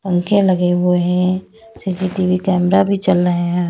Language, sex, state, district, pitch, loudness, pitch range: Hindi, female, Uttar Pradesh, Lalitpur, 185 Hz, -16 LUFS, 180-190 Hz